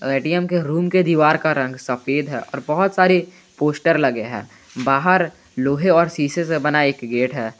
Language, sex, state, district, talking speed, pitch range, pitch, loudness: Hindi, male, Jharkhand, Garhwa, 195 wpm, 135-170 Hz, 150 Hz, -19 LUFS